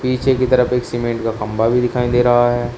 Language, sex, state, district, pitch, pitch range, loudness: Hindi, male, Uttar Pradesh, Shamli, 120 Hz, 120-125 Hz, -16 LUFS